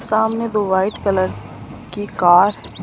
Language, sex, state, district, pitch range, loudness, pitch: Hindi, female, Rajasthan, Jaipur, 190-215 Hz, -17 LUFS, 205 Hz